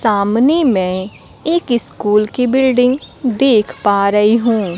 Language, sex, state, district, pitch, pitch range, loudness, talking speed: Hindi, female, Bihar, Kaimur, 230 Hz, 205-260 Hz, -14 LUFS, 125 wpm